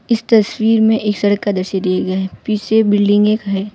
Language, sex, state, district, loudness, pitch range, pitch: Hindi, female, Gujarat, Valsad, -15 LUFS, 195-220 Hz, 210 Hz